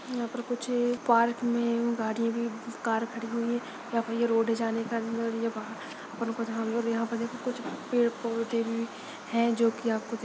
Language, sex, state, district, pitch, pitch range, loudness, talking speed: Hindi, female, Chhattisgarh, Bastar, 230 Hz, 230-235 Hz, -30 LUFS, 175 wpm